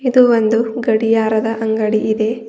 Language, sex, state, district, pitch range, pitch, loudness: Kannada, female, Karnataka, Bidar, 220-230 Hz, 225 Hz, -15 LUFS